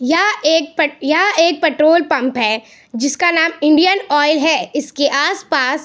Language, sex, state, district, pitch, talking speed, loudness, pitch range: Hindi, female, Bihar, Saharsa, 305 Hz, 155 wpm, -14 LUFS, 285-330 Hz